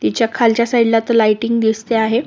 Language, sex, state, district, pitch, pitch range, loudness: Marathi, female, Maharashtra, Solapur, 230 Hz, 225-235 Hz, -15 LUFS